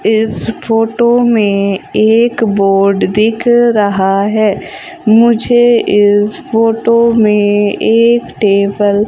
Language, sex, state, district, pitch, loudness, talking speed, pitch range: Hindi, female, Madhya Pradesh, Umaria, 220 Hz, -10 LUFS, 100 wpm, 205-235 Hz